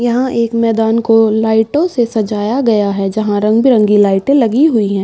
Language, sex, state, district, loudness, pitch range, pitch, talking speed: Hindi, female, Uttar Pradesh, Budaun, -12 LUFS, 210-240 Hz, 225 Hz, 190 wpm